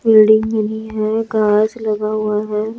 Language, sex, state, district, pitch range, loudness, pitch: Hindi, male, Chandigarh, Chandigarh, 215-220 Hz, -16 LUFS, 215 Hz